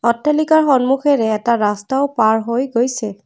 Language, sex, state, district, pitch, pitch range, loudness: Assamese, female, Assam, Kamrup Metropolitan, 240 Hz, 220-275 Hz, -16 LUFS